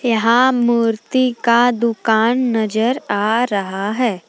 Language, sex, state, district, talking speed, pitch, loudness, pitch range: Hindi, female, Jharkhand, Palamu, 110 wpm, 230 Hz, -16 LUFS, 220-245 Hz